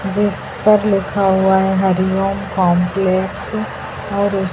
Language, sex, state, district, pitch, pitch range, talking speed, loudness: Hindi, male, Madhya Pradesh, Dhar, 195 Hz, 190-200 Hz, 105 wpm, -16 LUFS